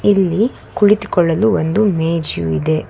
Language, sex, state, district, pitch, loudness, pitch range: Kannada, female, Karnataka, Bangalore, 175 Hz, -15 LUFS, 160-205 Hz